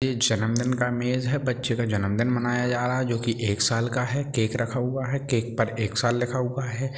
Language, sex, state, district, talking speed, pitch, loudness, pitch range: Hindi, male, Bihar, Sitamarhi, 260 wpm, 120 Hz, -25 LUFS, 115-130 Hz